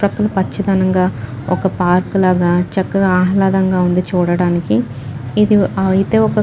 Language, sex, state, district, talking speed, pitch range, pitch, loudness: Telugu, female, Telangana, Nalgonda, 120 wpm, 180-195 Hz, 185 Hz, -15 LUFS